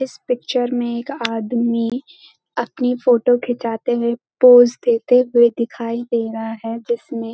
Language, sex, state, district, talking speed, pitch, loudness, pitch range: Hindi, female, Uttarakhand, Uttarkashi, 145 wpm, 240 Hz, -18 LUFS, 235-245 Hz